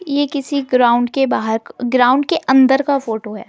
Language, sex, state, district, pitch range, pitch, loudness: Hindi, female, Delhi, New Delhi, 240-280 Hz, 265 Hz, -15 LUFS